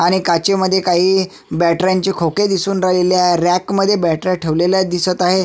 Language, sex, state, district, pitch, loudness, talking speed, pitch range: Marathi, male, Maharashtra, Sindhudurg, 185 Hz, -15 LUFS, 165 wpm, 175-190 Hz